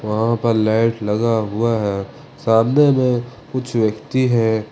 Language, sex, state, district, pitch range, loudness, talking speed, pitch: Hindi, male, Jharkhand, Ranchi, 110-120 Hz, -18 LUFS, 140 wpm, 115 Hz